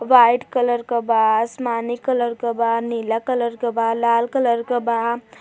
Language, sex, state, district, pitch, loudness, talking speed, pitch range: Hindi, female, Uttar Pradesh, Deoria, 235 Hz, -20 LUFS, 175 wpm, 230-245 Hz